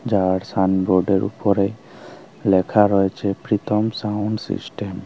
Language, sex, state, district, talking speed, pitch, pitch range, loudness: Bengali, male, Tripura, Unakoti, 120 wpm, 100 Hz, 95-105 Hz, -20 LUFS